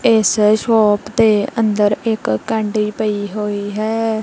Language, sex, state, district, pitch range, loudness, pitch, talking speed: Punjabi, female, Punjab, Kapurthala, 205-220 Hz, -16 LUFS, 215 Hz, 125 wpm